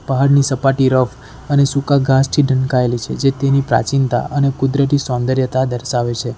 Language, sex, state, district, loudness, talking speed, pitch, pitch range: Gujarati, male, Gujarat, Valsad, -16 LUFS, 150 wpm, 135 Hz, 125-140 Hz